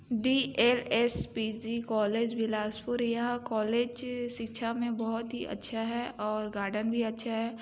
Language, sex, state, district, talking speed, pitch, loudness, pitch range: Hindi, female, Chhattisgarh, Bilaspur, 160 wpm, 230 Hz, -31 LUFS, 220-240 Hz